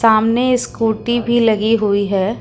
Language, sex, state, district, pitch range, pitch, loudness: Hindi, female, Uttar Pradesh, Lucknow, 215-235 Hz, 225 Hz, -16 LUFS